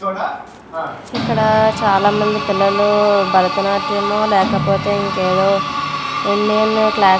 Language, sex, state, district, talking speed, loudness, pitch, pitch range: Telugu, female, Andhra Pradesh, Visakhapatnam, 90 wpm, -16 LUFS, 200 Hz, 195-220 Hz